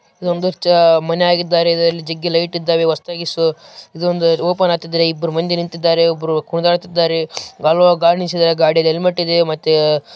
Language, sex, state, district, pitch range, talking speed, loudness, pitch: Kannada, male, Karnataka, Raichur, 165-175 Hz, 130 wpm, -15 LUFS, 170 Hz